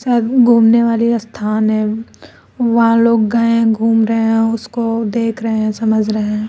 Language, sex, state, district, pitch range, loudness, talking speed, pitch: Hindi, female, Uttar Pradesh, Lucknow, 220-230 Hz, -14 LUFS, 175 wpm, 225 Hz